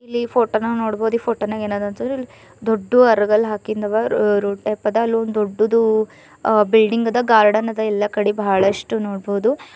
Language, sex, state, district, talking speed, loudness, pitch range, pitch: Kannada, female, Karnataka, Bidar, 170 wpm, -18 LUFS, 210-230 Hz, 220 Hz